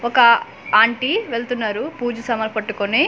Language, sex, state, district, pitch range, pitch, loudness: Telugu, female, Andhra Pradesh, Manyam, 220-250 Hz, 235 Hz, -18 LUFS